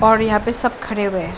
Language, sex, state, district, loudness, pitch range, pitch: Hindi, female, Bihar, Saran, -18 LUFS, 205-235 Hz, 220 Hz